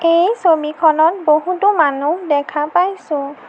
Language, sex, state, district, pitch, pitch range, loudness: Assamese, female, Assam, Sonitpur, 315 Hz, 300-360 Hz, -15 LUFS